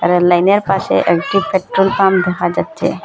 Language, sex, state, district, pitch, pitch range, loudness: Bengali, female, Assam, Hailakandi, 190 Hz, 175-195 Hz, -14 LUFS